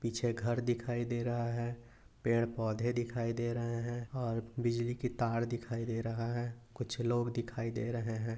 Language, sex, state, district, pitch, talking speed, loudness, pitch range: Hindi, male, Maharashtra, Nagpur, 120 Hz, 185 wpm, -36 LUFS, 115-120 Hz